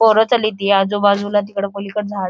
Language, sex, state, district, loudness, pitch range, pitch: Marathi, female, Maharashtra, Solapur, -17 LUFS, 200-210 Hz, 205 Hz